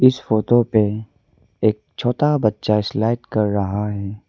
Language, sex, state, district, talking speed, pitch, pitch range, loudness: Hindi, male, Arunachal Pradesh, Lower Dibang Valley, 140 wpm, 110 Hz, 105-120 Hz, -19 LUFS